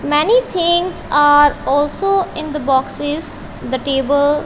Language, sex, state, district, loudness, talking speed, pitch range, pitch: English, female, Punjab, Kapurthala, -15 LUFS, 120 wpm, 285-345 Hz, 295 Hz